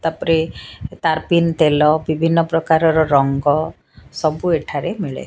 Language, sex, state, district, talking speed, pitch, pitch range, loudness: Odia, female, Odisha, Sambalpur, 100 wpm, 160 Hz, 155-165 Hz, -17 LUFS